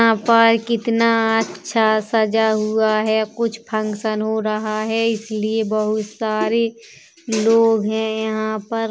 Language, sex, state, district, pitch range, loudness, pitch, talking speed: Bundeli, female, Uttar Pradesh, Jalaun, 215-230 Hz, -19 LUFS, 220 Hz, 130 wpm